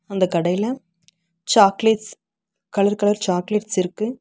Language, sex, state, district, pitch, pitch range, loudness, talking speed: Tamil, female, Tamil Nadu, Chennai, 200 Hz, 180-215 Hz, -20 LUFS, 100 wpm